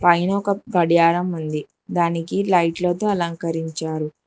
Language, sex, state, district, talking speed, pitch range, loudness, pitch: Telugu, female, Telangana, Hyderabad, 100 wpm, 165-180 Hz, -21 LUFS, 170 Hz